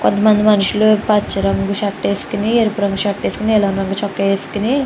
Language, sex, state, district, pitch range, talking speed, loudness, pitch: Telugu, female, Andhra Pradesh, Chittoor, 195-215 Hz, 185 wpm, -16 LUFS, 205 Hz